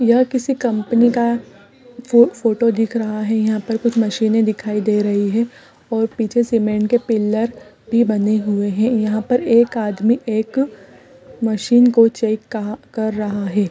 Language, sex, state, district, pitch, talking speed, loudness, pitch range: Hindi, female, Chhattisgarh, Rajnandgaon, 225 Hz, 160 wpm, -17 LUFS, 215-235 Hz